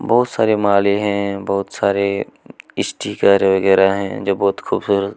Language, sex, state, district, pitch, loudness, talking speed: Hindi, male, Chhattisgarh, Kabirdham, 100 Hz, -17 LUFS, 140 wpm